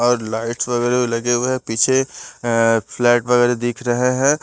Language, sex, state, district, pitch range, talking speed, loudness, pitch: Hindi, male, Bihar, Patna, 115-125 Hz, 175 wpm, -18 LUFS, 120 Hz